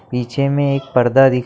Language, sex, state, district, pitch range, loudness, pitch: Hindi, male, Bihar, Darbhanga, 125-140 Hz, -16 LUFS, 135 Hz